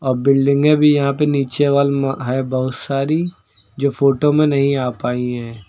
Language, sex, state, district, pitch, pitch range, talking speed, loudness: Hindi, male, Uttar Pradesh, Lucknow, 140 Hz, 130-145 Hz, 180 wpm, -17 LUFS